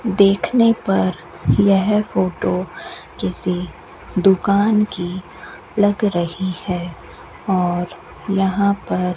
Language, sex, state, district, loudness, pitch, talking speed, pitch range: Hindi, female, Rajasthan, Bikaner, -18 LUFS, 190 Hz, 90 wpm, 180-205 Hz